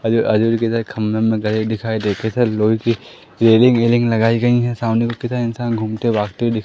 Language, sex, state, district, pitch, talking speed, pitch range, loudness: Hindi, female, Madhya Pradesh, Umaria, 115 Hz, 215 wpm, 110-120 Hz, -17 LUFS